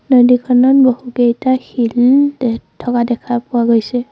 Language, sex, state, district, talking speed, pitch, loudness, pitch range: Assamese, female, Assam, Sonitpur, 115 wpm, 245 Hz, -13 LUFS, 240-255 Hz